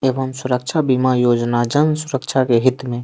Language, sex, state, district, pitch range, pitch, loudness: Hindi, male, Bihar, West Champaran, 125-135 Hz, 130 Hz, -17 LUFS